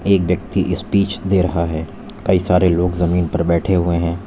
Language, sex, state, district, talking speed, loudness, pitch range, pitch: Hindi, male, Uttar Pradesh, Lalitpur, 195 wpm, -17 LUFS, 85-95 Hz, 90 Hz